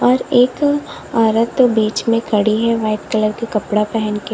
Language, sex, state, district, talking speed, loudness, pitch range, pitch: Hindi, female, Uttar Pradesh, Lalitpur, 180 wpm, -16 LUFS, 215-245 Hz, 225 Hz